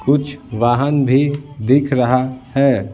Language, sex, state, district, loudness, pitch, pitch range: Hindi, male, Bihar, Patna, -16 LUFS, 135 Hz, 125-140 Hz